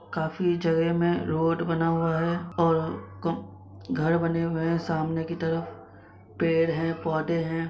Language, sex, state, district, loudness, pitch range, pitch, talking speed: Hindi, male, Jharkhand, Sahebganj, -27 LUFS, 160-165 Hz, 165 Hz, 155 wpm